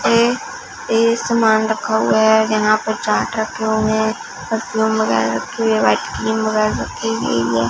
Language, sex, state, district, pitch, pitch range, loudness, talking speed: Hindi, female, Punjab, Fazilka, 220 Hz, 215-225 Hz, -17 LUFS, 165 wpm